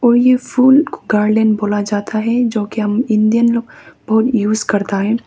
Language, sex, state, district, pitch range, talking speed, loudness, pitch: Hindi, female, Arunachal Pradesh, Papum Pare, 210-240 Hz, 160 wpm, -15 LUFS, 220 Hz